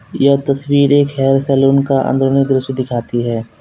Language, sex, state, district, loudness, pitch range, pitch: Hindi, male, Uttar Pradesh, Lalitpur, -14 LUFS, 130-140 Hz, 135 Hz